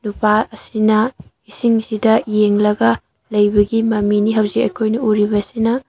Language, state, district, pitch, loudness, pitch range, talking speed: Manipuri, Manipur, Imphal West, 215 Hz, -16 LUFS, 210-225 Hz, 100 wpm